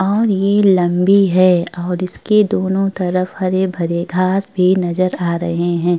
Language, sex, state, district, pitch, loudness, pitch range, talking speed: Hindi, female, Uttar Pradesh, Budaun, 185 Hz, -15 LUFS, 175-195 Hz, 150 wpm